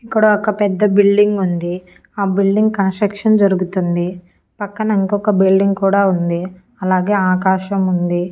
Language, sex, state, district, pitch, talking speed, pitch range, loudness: Telugu, female, Andhra Pradesh, Annamaya, 195 Hz, 125 wpm, 185-205 Hz, -15 LUFS